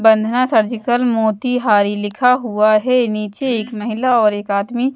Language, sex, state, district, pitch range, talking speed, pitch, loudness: Hindi, female, Bihar, West Champaran, 215-250 Hz, 145 wpm, 225 Hz, -16 LUFS